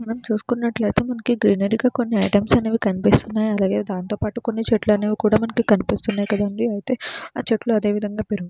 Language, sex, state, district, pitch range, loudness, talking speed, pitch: Telugu, female, Andhra Pradesh, Srikakulam, 205-230 Hz, -20 LUFS, 160 wpm, 215 Hz